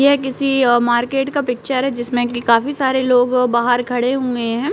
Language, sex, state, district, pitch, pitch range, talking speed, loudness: Hindi, female, Uttarakhand, Uttarkashi, 250 Hz, 240-270 Hz, 190 wpm, -17 LUFS